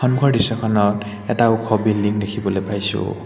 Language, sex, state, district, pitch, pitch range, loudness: Assamese, male, Assam, Hailakandi, 105 Hz, 100-115 Hz, -19 LUFS